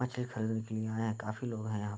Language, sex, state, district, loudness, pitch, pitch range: Hindi, male, Bihar, Bhagalpur, -36 LUFS, 110 Hz, 110-115 Hz